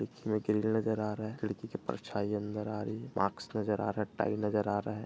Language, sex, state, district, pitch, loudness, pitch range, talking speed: Hindi, male, Maharashtra, Dhule, 105 Hz, -34 LUFS, 105-110 Hz, 260 wpm